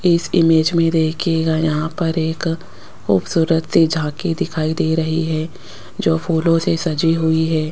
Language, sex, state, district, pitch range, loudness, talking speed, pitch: Hindi, female, Rajasthan, Jaipur, 160-165 Hz, -18 LUFS, 155 wpm, 160 Hz